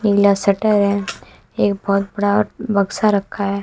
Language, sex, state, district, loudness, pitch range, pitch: Hindi, female, Bihar, West Champaran, -17 LUFS, 200-205 Hz, 200 Hz